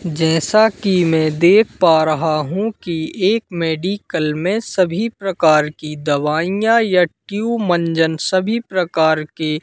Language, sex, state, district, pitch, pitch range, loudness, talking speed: Hindi, male, Madhya Pradesh, Katni, 175 Hz, 160-200 Hz, -17 LUFS, 130 wpm